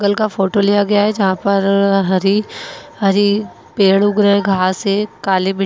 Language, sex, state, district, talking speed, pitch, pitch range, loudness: Hindi, female, Bihar, Lakhisarai, 160 wpm, 200 Hz, 195-205 Hz, -15 LUFS